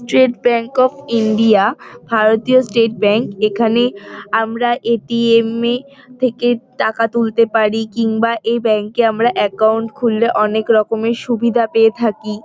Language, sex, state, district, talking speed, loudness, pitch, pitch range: Bengali, female, West Bengal, North 24 Parganas, 145 wpm, -15 LUFS, 230 Hz, 220-235 Hz